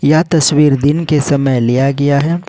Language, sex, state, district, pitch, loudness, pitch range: Hindi, male, Jharkhand, Ranchi, 145 Hz, -12 LUFS, 140-155 Hz